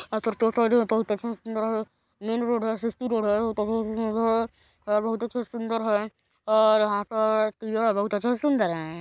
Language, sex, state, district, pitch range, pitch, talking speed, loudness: Hindi, female, Chhattisgarh, Balrampur, 215-230 Hz, 220 Hz, 60 wpm, -25 LUFS